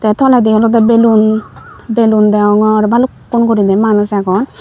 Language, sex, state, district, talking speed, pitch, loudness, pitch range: Chakma, female, Tripura, Unakoti, 145 wpm, 220 Hz, -10 LUFS, 210-230 Hz